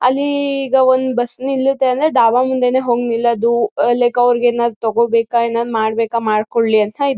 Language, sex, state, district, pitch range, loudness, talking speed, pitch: Kannada, female, Karnataka, Mysore, 230-260 Hz, -15 LUFS, 150 wpm, 240 Hz